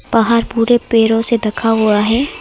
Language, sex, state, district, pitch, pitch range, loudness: Hindi, female, Arunachal Pradesh, Lower Dibang Valley, 225 Hz, 225-235 Hz, -14 LUFS